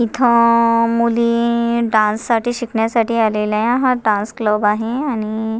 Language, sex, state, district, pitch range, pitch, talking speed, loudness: Marathi, female, Maharashtra, Nagpur, 220-235 Hz, 230 Hz, 130 wpm, -16 LUFS